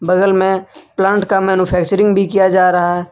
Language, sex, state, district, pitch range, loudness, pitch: Hindi, male, Jharkhand, Ranchi, 180-195 Hz, -13 LUFS, 190 Hz